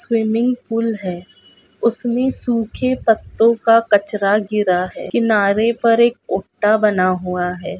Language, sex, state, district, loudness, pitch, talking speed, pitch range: Hindi, female, Maharashtra, Sindhudurg, -17 LUFS, 220 Hz, 130 wpm, 185-230 Hz